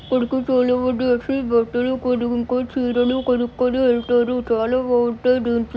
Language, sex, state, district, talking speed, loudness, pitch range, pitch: Telugu, male, Telangana, Nalgonda, 125 wpm, -20 LUFS, 240-255 Hz, 250 Hz